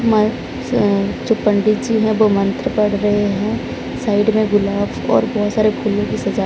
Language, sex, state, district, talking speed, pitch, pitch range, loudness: Hindi, male, Odisha, Sambalpur, 165 wpm, 210 Hz, 205-220 Hz, -17 LUFS